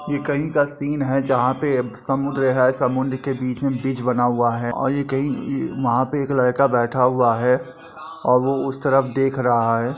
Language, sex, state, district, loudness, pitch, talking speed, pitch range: Hindi, male, Uttar Pradesh, Etah, -20 LUFS, 135 Hz, 200 wpm, 125-140 Hz